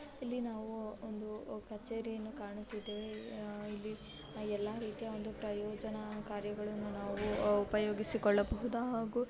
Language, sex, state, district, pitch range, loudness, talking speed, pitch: Kannada, female, Karnataka, Bijapur, 210-225 Hz, -39 LUFS, 85 wpm, 215 Hz